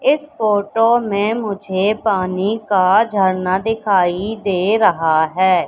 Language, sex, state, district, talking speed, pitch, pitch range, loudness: Hindi, female, Madhya Pradesh, Katni, 115 wpm, 200 Hz, 185-220 Hz, -16 LUFS